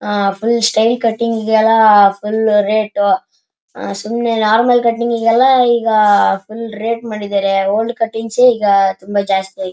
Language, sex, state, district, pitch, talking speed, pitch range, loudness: Kannada, male, Karnataka, Shimoga, 220 Hz, 110 wpm, 205-230 Hz, -13 LUFS